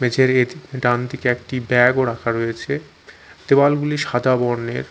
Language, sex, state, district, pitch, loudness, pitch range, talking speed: Bengali, male, Chhattisgarh, Raipur, 125 Hz, -19 LUFS, 120-130 Hz, 145 wpm